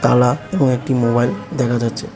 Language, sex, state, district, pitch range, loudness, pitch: Bengali, male, Tripura, West Tripura, 120-135 Hz, -17 LUFS, 125 Hz